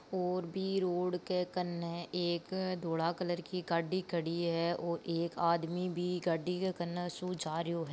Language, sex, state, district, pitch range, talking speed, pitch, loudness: Marwari, female, Rajasthan, Nagaur, 170-180 Hz, 175 wpm, 175 Hz, -36 LUFS